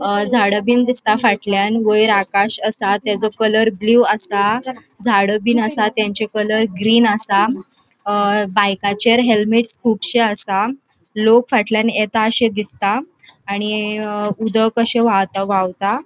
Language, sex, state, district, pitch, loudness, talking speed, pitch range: Konkani, female, Goa, North and South Goa, 215 Hz, -16 LUFS, 115 wpm, 205-230 Hz